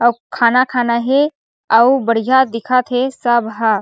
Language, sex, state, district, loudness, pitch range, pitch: Chhattisgarhi, female, Chhattisgarh, Sarguja, -15 LUFS, 230-260 Hz, 240 Hz